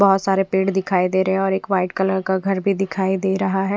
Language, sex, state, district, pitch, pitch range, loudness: Hindi, female, Punjab, Fazilka, 190 Hz, 190-195 Hz, -20 LUFS